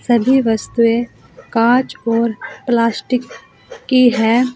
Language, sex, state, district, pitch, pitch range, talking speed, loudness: Hindi, female, Uttar Pradesh, Saharanpur, 240 Hz, 230-250 Hz, 90 wpm, -16 LUFS